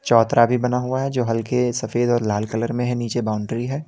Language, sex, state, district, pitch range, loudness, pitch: Hindi, male, Uttar Pradesh, Lalitpur, 115-125 Hz, -21 LUFS, 120 Hz